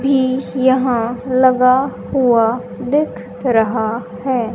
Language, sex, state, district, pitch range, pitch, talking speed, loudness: Hindi, male, Haryana, Charkhi Dadri, 235-260 Hz, 255 Hz, 90 wpm, -16 LUFS